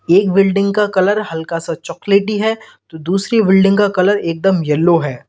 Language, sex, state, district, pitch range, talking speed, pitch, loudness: Hindi, male, Uttar Pradesh, Lalitpur, 165-205 Hz, 180 wpm, 190 Hz, -14 LUFS